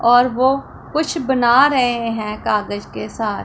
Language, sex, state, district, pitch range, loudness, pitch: Hindi, female, Punjab, Pathankot, 225-270 Hz, -17 LUFS, 245 Hz